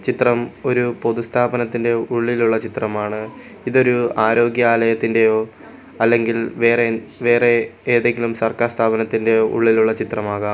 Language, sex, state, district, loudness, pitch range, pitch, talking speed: Malayalam, male, Kerala, Kollam, -18 LUFS, 110-120 Hz, 115 Hz, 95 wpm